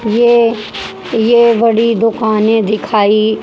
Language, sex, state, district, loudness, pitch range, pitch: Hindi, female, Haryana, Jhajjar, -11 LUFS, 215-230 Hz, 225 Hz